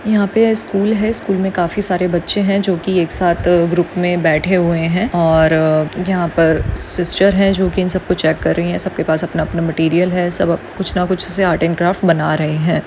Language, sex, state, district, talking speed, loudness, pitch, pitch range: Hindi, female, Maharashtra, Solapur, 235 wpm, -15 LUFS, 175 Hz, 165-190 Hz